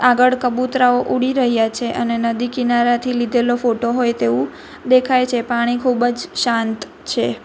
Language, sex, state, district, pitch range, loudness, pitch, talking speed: Gujarati, female, Gujarat, Valsad, 235-250 Hz, -17 LUFS, 245 Hz, 155 wpm